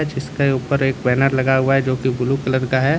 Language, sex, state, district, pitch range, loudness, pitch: Hindi, male, Jharkhand, Deoghar, 130-135 Hz, -18 LUFS, 135 Hz